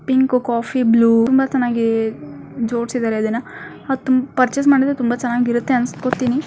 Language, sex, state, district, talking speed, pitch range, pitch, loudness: Kannada, female, Karnataka, Mysore, 130 wpm, 230-260 Hz, 245 Hz, -17 LUFS